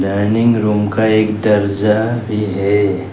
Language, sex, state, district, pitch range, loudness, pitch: Hindi, male, Arunachal Pradesh, Lower Dibang Valley, 100-110 Hz, -15 LUFS, 105 Hz